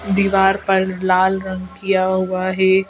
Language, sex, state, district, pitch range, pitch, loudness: Hindi, female, Madhya Pradesh, Bhopal, 185-195 Hz, 190 Hz, -17 LUFS